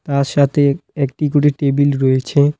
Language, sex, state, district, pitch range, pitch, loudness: Bengali, male, West Bengal, Alipurduar, 140-145 Hz, 140 Hz, -16 LUFS